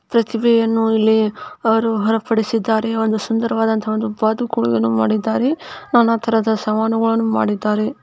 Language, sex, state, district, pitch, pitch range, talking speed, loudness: Kannada, female, Karnataka, Chamarajanagar, 225 Hz, 220-230 Hz, 105 wpm, -17 LUFS